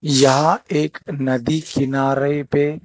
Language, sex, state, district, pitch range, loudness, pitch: Hindi, male, Telangana, Hyderabad, 135-155 Hz, -19 LUFS, 145 Hz